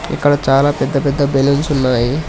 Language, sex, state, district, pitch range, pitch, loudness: Telugu, male, Telangana, Hyderabad, 135-145 Hz, 140 Hz, -14 LUFS